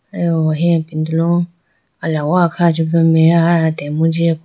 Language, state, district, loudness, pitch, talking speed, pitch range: Idu Mishmi, Arunachal Pradesh, Lower Dibang Valley, -15 LUFS, 165 Hz, 150 wpm, 160-170 Hz